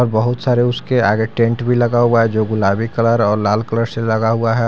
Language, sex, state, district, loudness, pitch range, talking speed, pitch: Hindi, male, Jharkhand, Garhwa, -16 LUFS, 110-120 Hz, 245 wpm, 115 Hz